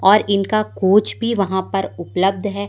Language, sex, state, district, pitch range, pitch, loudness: Hindi, female, Madhya Pradesh, Umaria, 190-210 Hz, 200 Hz, -18 LUFS